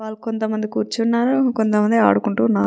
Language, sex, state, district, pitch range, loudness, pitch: Telugu, female, Telangana, Nalgonda, 210-230 Hz, -19 LUFS, 220 Hz